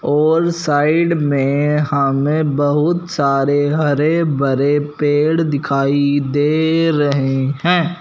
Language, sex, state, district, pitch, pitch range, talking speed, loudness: Hindi, male, Punjab, Fazilka, 145 Hz, 140-160 Hz, 95 wpm, -16 LUFS